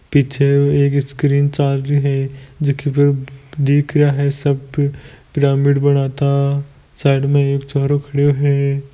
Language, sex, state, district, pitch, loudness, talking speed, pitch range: Hindi, male, Rajasthan, Nagaur, 140 Hz, -16 LUFS, 135 wpm, 140-145 Hz